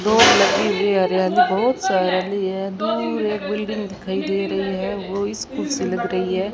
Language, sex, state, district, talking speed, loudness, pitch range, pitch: Hindi, female, Rajasthan, Bikaner, 175 wpm, -20 LUFS, 190-210 Hz, 195 Hz